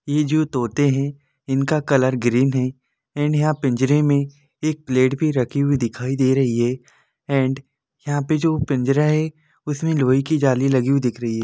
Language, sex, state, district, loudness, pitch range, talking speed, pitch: Hindi, male, Jharkhand, Jamtara, -20 LUFS, 130-150 Hz, 190 wpm, 140 Hz